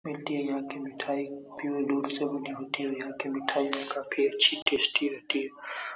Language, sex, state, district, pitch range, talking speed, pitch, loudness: Hindi, male, Bihar, Supaul, 140-145 Hz, 200 wpm, 140 Hz, -30 LUFS